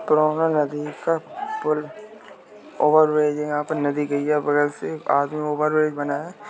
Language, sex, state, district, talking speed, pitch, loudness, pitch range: Hindi, male, Uttar Pradesh, Jalaun, 140 wpm, 150 Hz, -22 LUFS, 150-160 Hz